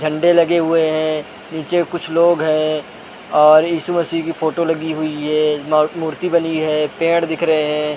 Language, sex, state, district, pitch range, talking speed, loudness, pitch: Hindi, male, Chhattisgarh, Rajnandgaon, 155-165 Hz, 180 wpm, -17 LUFS, 160 Hz